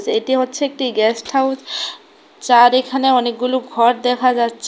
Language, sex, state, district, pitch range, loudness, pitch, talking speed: Bengali, female, Tripura, West Tripura, 240-265 Hz, -16 LUFS, 255 Hz, 140 wpm